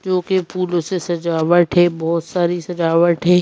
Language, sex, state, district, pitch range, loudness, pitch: Hindi, female, Madhya Pradesh, Bhopal, 170-180 Hz, -17 LUFS, 175 Hz